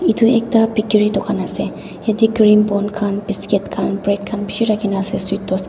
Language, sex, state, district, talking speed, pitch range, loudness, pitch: Nagamese, female, Nagaland, Dimapur, 220 wpm, 200-215 Hz, -17 LUFS, 210 Hz